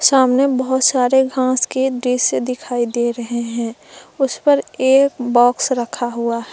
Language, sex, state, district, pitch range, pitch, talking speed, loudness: Hindi, female, Jharkhand, Palamu, 240-265 Hz, 250 Hz, 155 wpm, -17 LUFS